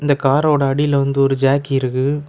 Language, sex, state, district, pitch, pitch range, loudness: Tamil, male, Tamil Nadu, Kanyakumari, 140 Hz, 135-145 Hz, -16 LUFS